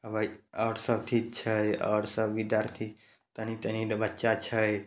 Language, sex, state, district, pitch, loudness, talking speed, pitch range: Maithili, male, Bihar, Samastipur, 110 Hz, -31 LUFS, 170 wpm, 110-115 Hz